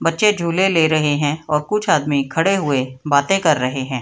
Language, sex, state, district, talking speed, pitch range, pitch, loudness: Hindi, female, Bihar, Madhepura, 210 wpm, 140-170 Hz, 155 Hz, -17 LUFS